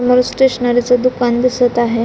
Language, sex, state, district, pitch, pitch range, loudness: Marathi, female, Maharashtra, Solapur, 245 Hz, 240-250 Hz, -14 LUFS